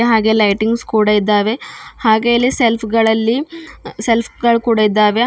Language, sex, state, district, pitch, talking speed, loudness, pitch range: Kannada, female, Karnataka, Bidar, 225 Hz, 135 wpm, -14 LUFS, 215-235 Hz